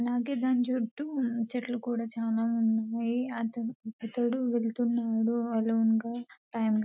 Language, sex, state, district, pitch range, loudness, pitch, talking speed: Telugu, female, Telangana, Nalgonda, 225-245 Hz, -30 LUFS, 235 Hz, 105 wpm